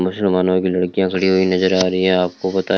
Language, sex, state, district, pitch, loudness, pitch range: Hindi, male, Rajasthan, Bikaner, 95 Hz, -17 LUFS, 90-95 Hz